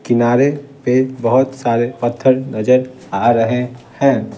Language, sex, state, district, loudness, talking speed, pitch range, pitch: Hindi, male, Bihar, Patna, -16 LUFS, 125 wpm, 120-130 Hz, 125 Hz